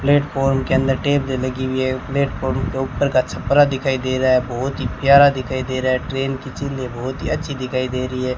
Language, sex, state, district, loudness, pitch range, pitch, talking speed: Hindi, male, Rajasthan, Bikaner, -19 LUFS, 130-135 Hz, 130 Hz, 235 wpm